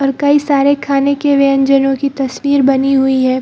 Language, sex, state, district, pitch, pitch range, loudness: Hindi, female, Chhattisgarh, Bilaspur, 275 Hz, 270-280 Hz, -12 LUFS